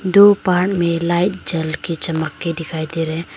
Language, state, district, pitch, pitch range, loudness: Hindi, Arunachal Pradesh, Lower Dibang Valley, 170 Hz, 160-180 Hz, -18 LUFS